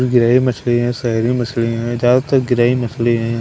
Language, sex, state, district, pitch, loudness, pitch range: Hindi, male, Maharashtra, Washim, 120 Hz, -16 LUFS, 115-125 Hz